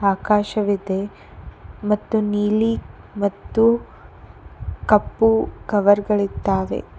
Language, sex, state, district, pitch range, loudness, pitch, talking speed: Kannada, female, Karnataka, Koppal, 200-215 Hz, -20 LUFS, 205 Hz, 60 wpm